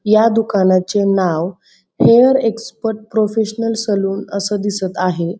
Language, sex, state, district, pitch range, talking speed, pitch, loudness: Marathi, female, Maharashtra, Pune, 190-225 Hz, 110 wpm, 205 Hz, -16 LUFS